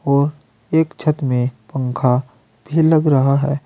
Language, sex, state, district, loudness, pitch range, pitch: Hindi, male, Uttar Pradesh, Saharanpur, -18 LUFS, 125-150 Hz, 140 Hz